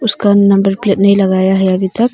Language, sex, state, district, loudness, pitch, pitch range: Hindi, female, Arunachal Pradesh, Longding, -11 LUFS, 200 Hz, 190-205 Hz